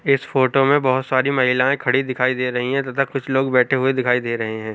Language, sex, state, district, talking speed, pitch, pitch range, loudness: Hindi, male, Uttar Pradesh, Hamirpur, 255 wpm, 130 Hz, 125-135 Hz, -19 LUFS